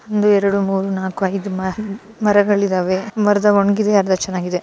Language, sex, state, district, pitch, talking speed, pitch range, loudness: Kannada, female, Karnataka, Shimoga, 200 Hz, 170 wpm, 190-210 Hz, -17 LUFS